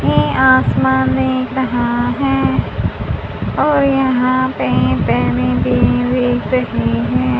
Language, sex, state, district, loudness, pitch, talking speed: Hindi, female, Haryana, Charkhi Dadri, -15 LUFS, 130 Hz, 95 wpm